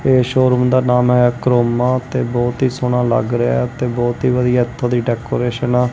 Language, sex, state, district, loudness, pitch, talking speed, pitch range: Punjabi, male, Punjab, Kapurthala, -16 LUFS, 125 Hz, 200 wpm, 120-125 Hz